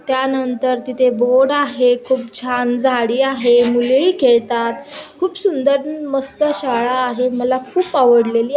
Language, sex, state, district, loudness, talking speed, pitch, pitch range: Marathi, female, Maharashtra, Aurangabad, -16 LUFS, 125 wpm, 255 Hz, 245-270 Hz